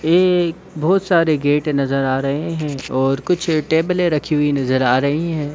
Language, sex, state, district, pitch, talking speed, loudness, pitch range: Hindi, male, Jharkhand, Sahebganj, 155 Hz, 185 wpm, -18 LUFS, 140-170 Hz